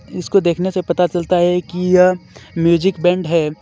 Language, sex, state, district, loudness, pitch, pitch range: Hindi, male, Jharkhand, Deoghar, -16 LUFS, 180 Hz, 170-180 Hz